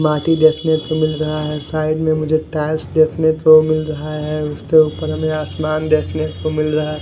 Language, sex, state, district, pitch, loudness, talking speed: Hindi, male, Punjab, Fazilka, 155 Hz, -17 LUFS, 195 wpm